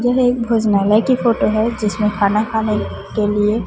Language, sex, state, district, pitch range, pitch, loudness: Hindi, female, Chhattisgarh, Raipur, 210-235 Hz, 215 Hz, -17 LUFS